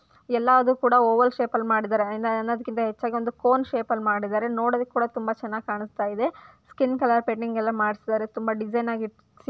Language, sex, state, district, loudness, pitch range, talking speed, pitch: Kannada, female, Karnataka, Dharwad, -24 LUFS, 220-245 Hz, 175 wpm, 235 Hz